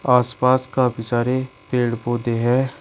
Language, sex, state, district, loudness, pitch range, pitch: Hindi, male, Uttar Pradesh, Shamli, -20 LUFS, 120-130 Hz, 125 Hz